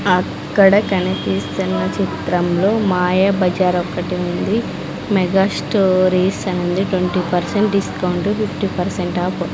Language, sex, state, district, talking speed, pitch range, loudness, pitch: Telugu, female, Andhra Pradesh, Sri Satya Sai, 100 wpm, 175-195 Hz, -17 LUFS, 180 Hz